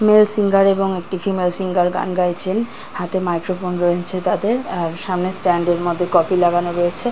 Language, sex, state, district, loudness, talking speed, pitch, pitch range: Bengali, female, West Bengal, Kolkata, -18 LUFS, 175 wpm, 185 Hz, 175-195 Hz